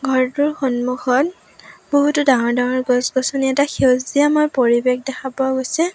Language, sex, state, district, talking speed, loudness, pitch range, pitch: Assamese, female, Assam, Sonitpur, 120 wpm, -18 LUFS, 255-285 Hz, 265 Hz